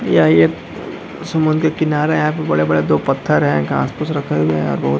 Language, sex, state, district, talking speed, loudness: Hindi, male, Bihar, Gaya, 215 wpm, -16 LUFS